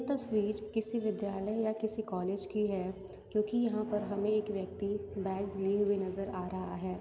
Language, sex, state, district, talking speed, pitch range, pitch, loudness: Hindi, female, Uttar Pradesh, Varanasi, 180 wpm, 195-215 Hz, 205 Hz, -35 LUFS